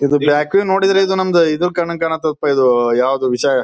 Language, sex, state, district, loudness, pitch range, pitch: Kannada, male, Karnataka, Bijapur, -15 LUFS, 140-180 Hz, 155 Hz